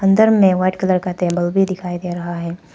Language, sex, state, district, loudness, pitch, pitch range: Hindi, female, Arunachal Pradesh, Papum Pare, -17 LUFS, 180 Hz, 175-190 Hz